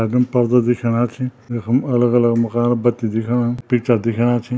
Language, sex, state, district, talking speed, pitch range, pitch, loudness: Garhwali, male, Uttarakhand, Tehri Garhwal, 155 wpm, 120-125 Hz, 120 Hz, -18 LUFS